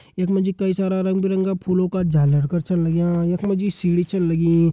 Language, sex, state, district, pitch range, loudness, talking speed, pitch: Hindi, male, Uttarakhand, Uttarkashi, 170-190 Hz, -20 LUFS, 240 wpm, 185 Hz